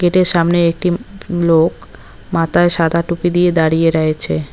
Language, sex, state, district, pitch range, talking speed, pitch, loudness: Bengali, female, West Bengal, Cooch Behar, 165-175 Hz, 160 wpm, 170 Hz, -14 LUFS